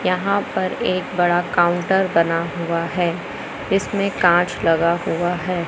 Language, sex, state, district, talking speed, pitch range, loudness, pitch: Hindi, male, Madhya Pradesh, Katni, 135 wpm, 170-185 Hz, -19 LUFS, 175 Hz